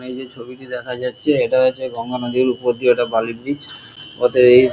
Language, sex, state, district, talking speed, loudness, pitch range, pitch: Bengali, male, West Bengal, Kolkata, 190 wpm, -18 LUFS, 120-130 Hz, 125 Hz